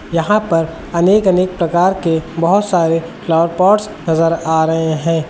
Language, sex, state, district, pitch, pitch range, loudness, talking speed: Hindi, male, Uttar Pradesh, Lucknow, 165 Hz, 165-185 Hz, -14 LUFS, 160 wpm